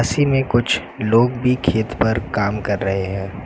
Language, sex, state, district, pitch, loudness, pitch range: Hindi, male, Uttar Pradesh, Lucknow, 110 Hz, -19 LUFS, 100-125 Hz